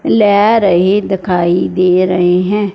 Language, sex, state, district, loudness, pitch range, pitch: Hindi, female, Punjab, Fazilka, -11 LUFS, 180-205 Hz, 185 Hz